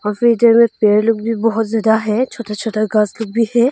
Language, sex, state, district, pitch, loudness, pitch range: Hindi, female, Arunachal Pradesh, Longding, 225 Hz, -15 LUFS, 215-235 Hz